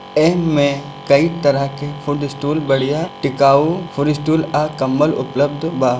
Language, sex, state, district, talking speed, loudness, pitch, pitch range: Bhojpuri, male, Bihar, Gopalganj, 150 wpm, -17 LUFS, 145 Hz, 140-155 Hz